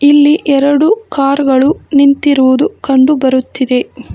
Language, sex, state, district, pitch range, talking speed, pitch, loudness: Kannada, female, Karnataka, Bangalore, 265-295 Hz, 100 wpm, 280 Hz, -10 LUFS